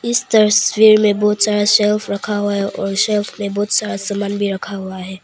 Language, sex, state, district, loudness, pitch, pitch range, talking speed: Hindi, female, Arunachal Pradesh, Papum Pare, -16 LUFS, 205 Hz, 200-210 Hz, 215 wpm